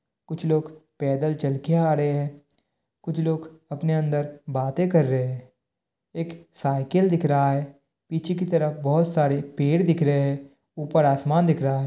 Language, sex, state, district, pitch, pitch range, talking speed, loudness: Hindi, male, Bihar, Kishanganj, 150 Hz, 140-165 Hz, 175 wpm, -24 LUFS